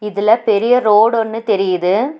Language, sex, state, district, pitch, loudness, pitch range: Tamil, female, Tamil Nadu, Nilgiris, 215 Hz, -14 LUFS, 205-225 Hz